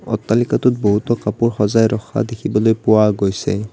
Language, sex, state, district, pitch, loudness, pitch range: Assamese, male, Assam, Kamrup Metropolitan, 110 Hz, -17 LUFS, 105-115 Hz